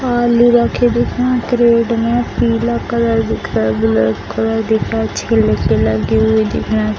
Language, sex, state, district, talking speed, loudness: Hindi, female, Bihar, Samastipur, 195 wpm, -14 LUFS